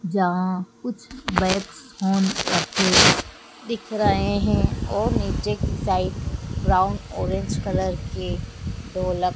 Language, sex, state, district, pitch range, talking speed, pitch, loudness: Hindi, female, Madhya Pradesh, Dhar, 180-210 Hz, 110 wpm, 185 Hz, -22 LUFS